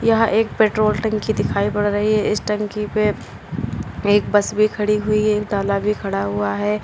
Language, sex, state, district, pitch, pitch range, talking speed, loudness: Hindi, female, Uttar Pradesh, Lalitpur, 210 Hz, 205-215 Hz, 195 wpm, -19 LUFS